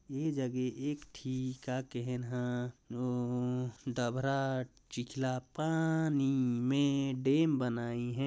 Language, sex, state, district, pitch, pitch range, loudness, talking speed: Chhattisgarhi, male, Chhattisgarh, Jashpur, 130 Hz, 125-140 Hz, -35 LUFS, 95 wpm